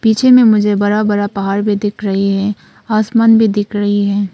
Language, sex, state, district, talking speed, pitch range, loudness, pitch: Hindi, female, Arunachal Pradesh, Papum Pare, 205 wpm, 205-220 Hz, -13 LUFS, 205 Hz